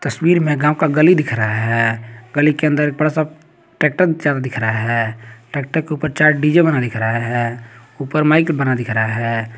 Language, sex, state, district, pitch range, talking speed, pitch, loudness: Hindi, male, Jharkhand, Garhwa, 115-155 Hz, 215 wpm, 145 Hz, -16 LUFS